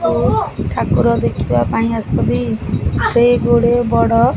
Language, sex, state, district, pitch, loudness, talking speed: Odia, male, Odisha, Khordha, 185 Hz, -15 LUFS, 110 wpm